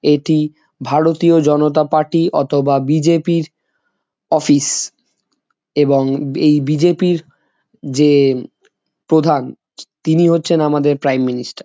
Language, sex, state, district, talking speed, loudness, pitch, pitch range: Bengali, male, West Bengal, Jhargram, 115 wpm, -15 LUFS, 150 Hz, 140-165 Hz